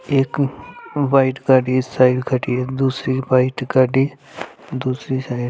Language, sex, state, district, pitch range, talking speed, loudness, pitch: Hindi, male, Punjab, Fazilka, 130-135 Hz, 140 wpm, -18 LUFS, 130 Hz